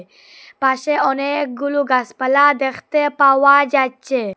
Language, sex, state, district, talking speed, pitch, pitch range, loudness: Bengali, female, Assam, Hailakandi, 80 wpm, 275 Hz, 260-285 Hz, -16 LUFS